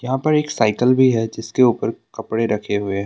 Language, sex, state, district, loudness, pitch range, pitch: Hindi, male, Assam, Sonitpur, -18 LUFS, 110-130 Hz, 115 Hz